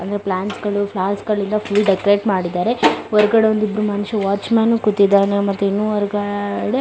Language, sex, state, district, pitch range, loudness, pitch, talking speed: Kannada, female, Karnataka, Bellary, 200-215 Hz, -17 LUFS, 205 Hz, 165 wpm